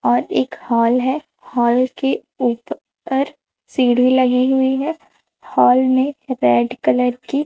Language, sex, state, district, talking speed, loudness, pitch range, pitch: Hindi, female, Chhattisgarh, Raipur, 135 wpm, -17 LUFS, 240-265 Hz, 255 Hz